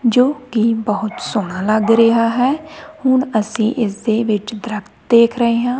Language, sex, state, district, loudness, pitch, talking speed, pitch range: Punjabi, female, Punjab, Kapurthala, -16 LUFS, 230 Hz, 165 wpm, 215-250 Hz